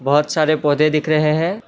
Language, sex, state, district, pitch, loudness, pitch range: Hindi, male, Assam, Kamrup Metropolitan, 155 Hz, -17 LUFS, 150-155 Hz